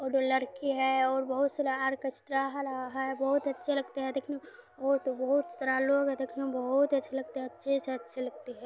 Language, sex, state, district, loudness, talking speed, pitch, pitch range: Maithili, female, Bihar, Supaul, -31 LUFS, 230 wpm, 270 Hz, 260-275 Hz